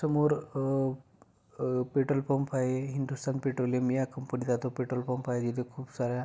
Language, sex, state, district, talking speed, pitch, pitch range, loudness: Marathi, male, Maharashtra, Pune, 175 wpm, 130 Hz, 125-135 Hz, -31 LUFS